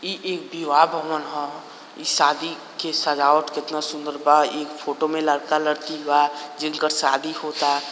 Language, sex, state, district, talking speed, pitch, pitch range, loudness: Hindi, male, Bihar, East Champaran, 150 wpm, 150 Hz, 145-155 Hz, -22 LUFS